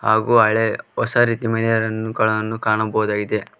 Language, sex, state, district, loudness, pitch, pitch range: Kannada, male, Karnataka, Koppal, -19 LUFS, 110 Hz, 110-115 Hz